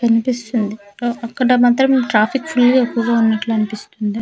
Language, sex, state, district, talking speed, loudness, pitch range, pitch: Telugu, female, Andhra Pradesh, Manyam, 140 wpm, -16 LUFS, 220-245 Hz, 235 Hz